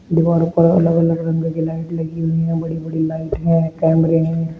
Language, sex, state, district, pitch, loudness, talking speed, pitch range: Hindi, male, Uttar Pradesh, Shamli, 165 Hz, -17 LUFS, 210 wpm, 160-165 Hz